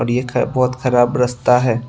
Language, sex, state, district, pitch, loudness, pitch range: Hindi, male, Tripura, West Tripura, 125 Hz, -16 LUFS, 120-125 Hz